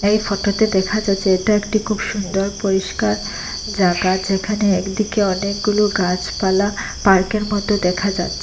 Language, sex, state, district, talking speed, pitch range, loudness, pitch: Bengali, female, Assam, Hailakandi, 130 wpm, 190-210 Hz, -18 LUFS, 200 Hz